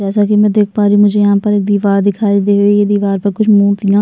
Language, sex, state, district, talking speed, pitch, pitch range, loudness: Hindi, female, Uttarakhand, Tehri Garhwal, 285 wpm, 205 Hz, 200-205 Hz, -11 LUFS